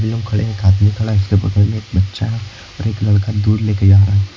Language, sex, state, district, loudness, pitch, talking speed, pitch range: Hindi, male, Uttar Pradesh, Lucknow, -15 LUFS, 105 Hz, 300 wpm, 100-110 Hz